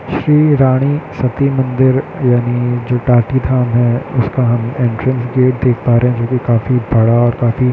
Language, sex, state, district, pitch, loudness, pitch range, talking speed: Hindi, male, Bihar, Muzaffarpur, 125 Hz, -13 LUFS, 120-130 Hz, 165 wpm